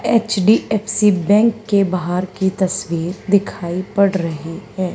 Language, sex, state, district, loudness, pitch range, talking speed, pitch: Hindi, female, Haryana, Charkhi Dadri, -17 LUFS, 180-210 Hz, 120 wpm, 190 Hz